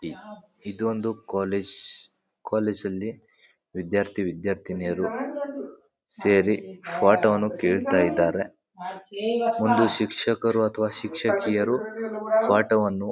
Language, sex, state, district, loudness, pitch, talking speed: Kannada, male, Karnataka, Bijapur, -25 LUFS, 110 Hz, 80 wpm